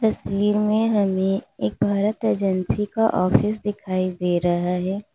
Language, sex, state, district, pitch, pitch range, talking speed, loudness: Hindi, female, Uttar Pradesh, Lalitpur, 200 Hz, 185-210 Hz, 140 wpm, -22 LUFS